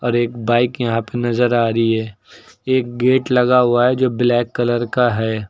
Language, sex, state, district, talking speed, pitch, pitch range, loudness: Hindi, male, Uttar Pradesh, Lucknow, 205 wpm, 120 Hz, 115-125 Hz, -17 LUFS